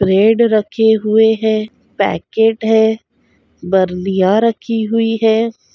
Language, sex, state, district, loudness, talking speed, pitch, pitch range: Hindi, female, Chhattisgarh, Raigarh, -14 LUFS, 105 wpm, 220 Hz, 210-225 Hz